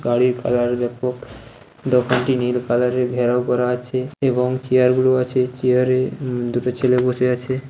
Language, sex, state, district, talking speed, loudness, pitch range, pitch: Bengali, male, West Bengal, Jhargram, 170 wpm, -19 LUFS, 125-130 Hz, 125 Hz